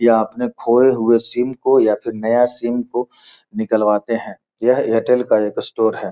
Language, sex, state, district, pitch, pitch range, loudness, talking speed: Hindi, male, Bihar, Gopalganj, 115 Hz, 110-125 Hz, -17 LUFS, 185 wpm